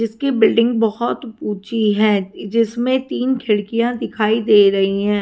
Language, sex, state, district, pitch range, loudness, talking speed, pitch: Hindi, female, Haryana, Rohtak, 205-235 Hz, -17 LUFS, 150 wpm, 225 Hz